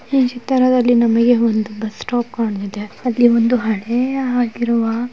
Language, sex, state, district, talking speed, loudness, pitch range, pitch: Kannada, female, Karnataka, Mysore, 130 wpm, -17 LUFS, 225-245 Hz, 240 Hz